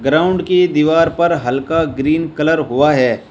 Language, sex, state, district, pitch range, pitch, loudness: Hindi, male, Uttar Pradesh, Shamli, 145-165 Hz, 160 Hz, -14 LUFS